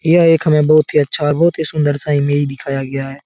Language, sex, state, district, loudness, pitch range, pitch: Hindi, male, Bihar, Jahanabad, -15 LUFS, 140-160 Hz, 150 Hz